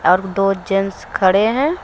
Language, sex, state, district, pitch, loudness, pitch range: Hindi, female, Jharkhand, Deoghar, 195 Hz, -17 LUFS, 190-205 Hz